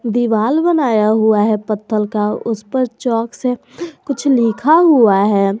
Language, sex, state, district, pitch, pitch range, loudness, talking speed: Hindi, female, Jharkhand, Garhwa, 230 Hz, 215-260 Hz, -15 LUFS, 150 wpm